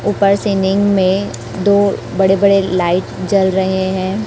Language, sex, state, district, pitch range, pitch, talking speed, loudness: Hindi, female, Chhattisgarh, Raipur, 190-200 Hz, 195 Hz, 140 wpm, -14 LUFS